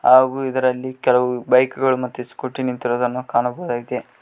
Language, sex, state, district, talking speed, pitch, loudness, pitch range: Kannada, male, Karnataka, Koppal, 130 wpm, 125 Hz, -20 LUFS, 125-130 Hz